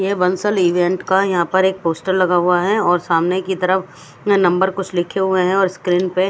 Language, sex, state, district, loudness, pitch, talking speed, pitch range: Hindi, female, Punjab, Fazilka, -17 LUFS, 185 Hz, 230 wpm, 175-190 Hz